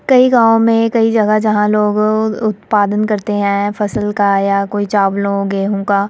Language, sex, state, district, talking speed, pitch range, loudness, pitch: Hindi, female, Uttar Pradesh, Muzaffarnagar, 165 wpm, 200-220 Hz, -14 LUFS, 210 Hz